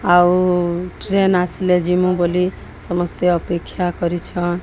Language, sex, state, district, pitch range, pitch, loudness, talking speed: Odia, female, Odisha, Sambalpur, 175-180 Hz, 180 Hz, -18 LUFS, 105 wpm